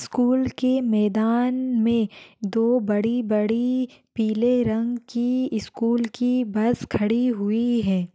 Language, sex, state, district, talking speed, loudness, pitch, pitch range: Hindi, female, Bihar, Saharsa, 120 wpm, -23 LUFS, 235 Hz, 220-245 Hz